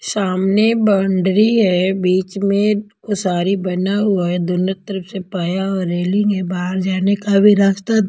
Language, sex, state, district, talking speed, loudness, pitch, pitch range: Hindi, female, Punjab, Pathankot, 155 wpm, -17 LUFS, 195 Hz, 185-205 Hz